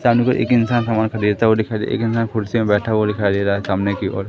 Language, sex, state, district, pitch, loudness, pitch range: Hindi, male, Madhya Pradesh, Katni, 110 Hz, -18 LUFS, 100-115 Hz